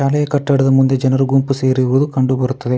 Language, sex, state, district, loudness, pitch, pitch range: Kannada, male, Karnataka, Bangalore, -15 LUFS, 135 Hz, 130-140 Hz